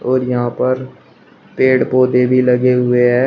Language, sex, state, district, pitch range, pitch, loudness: Hindi, male, Uttar Pradesh, Shamli, 125-130 Hz, 125 Hz, -14 LUFS